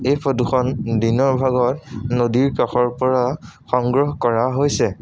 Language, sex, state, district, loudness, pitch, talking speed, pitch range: Assamese, male, Assam, Sonitpur, -19 LUFS, 125 Hz, 130 wpm, 120-135 Hz